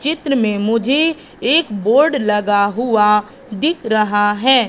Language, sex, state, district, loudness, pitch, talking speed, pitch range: Hindi, female, Madhya Pradesh, Katni, -15 LUFS, 230 Hz, 130 wpm, 210-275 Hz